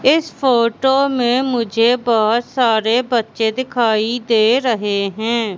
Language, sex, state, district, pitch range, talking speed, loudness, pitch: Hindi, female, Madhya Pradesh, Katni, 225-255 Hz, 120 wpm, -16 LUFS, 235 Hz